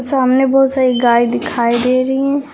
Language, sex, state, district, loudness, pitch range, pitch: Hindi, female, Uttar Pradesh, Lucknow, -14 LUFS, 245-270 Hz, 255 Hz